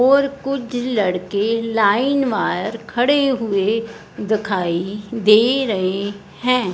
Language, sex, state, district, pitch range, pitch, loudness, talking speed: Hindi, female, Punjab, Fazilka, 200-250 Hz, 225 Hz, -19 LUFS, 100 wpm